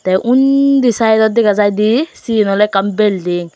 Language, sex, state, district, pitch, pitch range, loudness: Chakma, female, Tripura, West Tripura, 215 Hz, 200-235 Hz, -13 LUFS